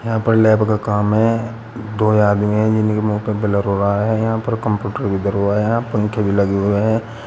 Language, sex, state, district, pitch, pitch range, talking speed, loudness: Hindi, male, Uttar Pradesh, Shamli, 105 Hz, 105-110 Hz, 240 wpm, -17 LUFS